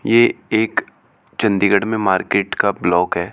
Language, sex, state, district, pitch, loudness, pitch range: Hindi, male, Chandigarh, Chandigarh, 110 Hz, -17 LUFS, 100-110 Hz